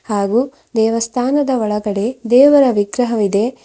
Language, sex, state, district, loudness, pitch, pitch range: Kannada, female, Karnataka, Bidar, -15 LUFS, 230 Hz, 210-255 Hz